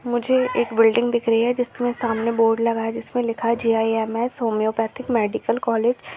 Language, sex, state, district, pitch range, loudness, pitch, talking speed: Hindi, female, Chhattisgarh, Rajnandgaon, 225-240 Hz, -21 LUFS, 230 Hz, 235 wpm